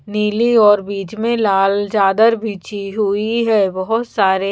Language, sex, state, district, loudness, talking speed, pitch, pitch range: Hindi, female, Bihar, Patna, -16 LUFS, 145 wpm, 210 Hz, 195-225 Hz